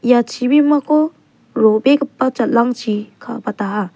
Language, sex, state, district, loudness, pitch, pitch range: Garo, female, Meghalaya, South Garo Hills, -16 LUFS, 245 Hz, 220-280 Hz